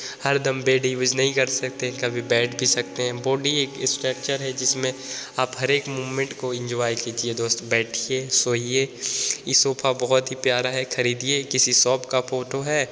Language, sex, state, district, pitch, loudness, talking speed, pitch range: Hindi, male, Bihar, Begusarai, 130 Hz, -22 LUFS, 180 wpm, 125-130 Hz